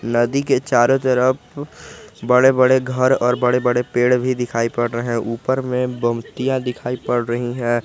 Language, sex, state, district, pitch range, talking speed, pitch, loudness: Hindi, male, Jharkhand, Garhwa, 120-130 Hz, 175 wpm, 125 Hz, -18 LUFS